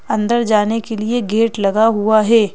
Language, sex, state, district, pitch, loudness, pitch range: Hindi, female, Madhya Pradesh, Bhopal, 220 Hz, -15 LUFS, 215-230 Hz